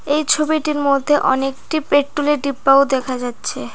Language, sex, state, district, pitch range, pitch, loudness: Bengali, female, Tripura, Dhalai, 265-295 Hz, 280 Hz, -17 LUFS